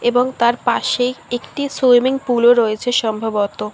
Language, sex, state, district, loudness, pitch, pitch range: Bengali, female, West Bengal, Dakshin Dinajpur, -17 LUFS, 245 Hz, 225-250 Hz